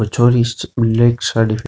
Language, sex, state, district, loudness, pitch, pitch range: Rajasthani, male, Rajasthan, Nagaur, -15 LUFS, 115 Hz, 115-120 Hz